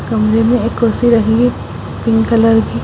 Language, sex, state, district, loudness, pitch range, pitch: Hindi, female, Punjab, Kapurthala, -13 LUFS, 225-235 Hz, 225 Hz